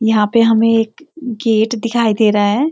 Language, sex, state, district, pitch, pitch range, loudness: Hindi, female, Uttarakhand, Uttarkashi, 225 Hz, 220-235 Hz, -14 LUFS